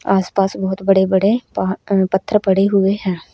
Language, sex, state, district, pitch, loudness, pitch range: Hindi, female, Haryana, Rohtak, 195 Hz, -16 LUFS, 190-200 Hz